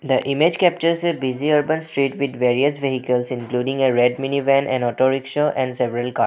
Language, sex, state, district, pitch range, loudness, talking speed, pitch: English, male, Assam, Sonitpur, 125-145 Hz, -20 LUFS, 200 wpm, 135 Hz